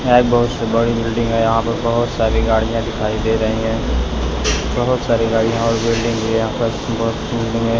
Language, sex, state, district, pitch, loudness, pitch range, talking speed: Hindi, male, Maharashtra, Mumbai Suburban, 115 Hz, -17 LUFS, 110-115 Hz, 205 wpm